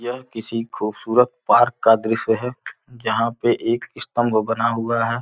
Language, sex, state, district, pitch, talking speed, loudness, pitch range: Hindi, male, Uttar Pradesh, Gorakhpur, 115 Hz, 150 wpm, -20 LUFS, 115-120 Hz